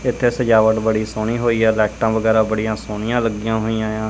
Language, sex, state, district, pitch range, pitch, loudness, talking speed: Punjabi, male, Punjab, Kapurthala, 110-115 Hz, 110 Hz, -18 LUFS, 205 wpm